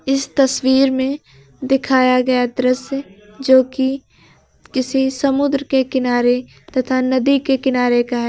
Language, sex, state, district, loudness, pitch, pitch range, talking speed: Hindi, female, Uttar Pradesh, Lucknow, -17 LUFS, 260 Hz, 250-270 Hz, 125 wpm